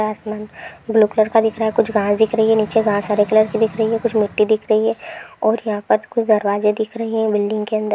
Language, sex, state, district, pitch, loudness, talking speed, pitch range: Hindi, female, Andhra Pradesh, Krishna, 215 Hz, -18 LUFS, 270 wpm, 210-225 Hz